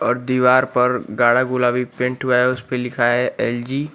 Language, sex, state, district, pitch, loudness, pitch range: Hindi, male, Uttar Pradesh, Lucknow, 125 Hz, -18 LUFS, 125-130 Hz